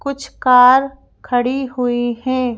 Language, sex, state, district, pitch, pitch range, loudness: Hindi, female, Madhya Pradesh, Bhopal, 255 Hz, 245-270 Hz, -15 LUFS